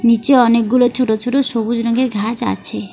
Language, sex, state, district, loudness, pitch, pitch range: Bengali, female, West Bengal, Alipurduar, -15 LUFS, 235 Hz, 225-250 Hz